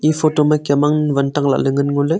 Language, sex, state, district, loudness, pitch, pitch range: Wancho, male, Arunachal Pradesh, Longding, -16 LUFS, 145 Hz, 140-155 Hz